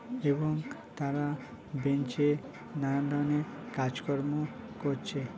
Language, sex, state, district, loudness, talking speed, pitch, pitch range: Bengali, male, West Bengal, Kolkata, -33 LUFS, 90 wpm, 145 Hz, 140-150 Hz